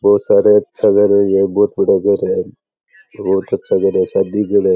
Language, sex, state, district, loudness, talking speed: Rajasthani, male, Rajasthan, Churu, -14 LUFS, 190 wpm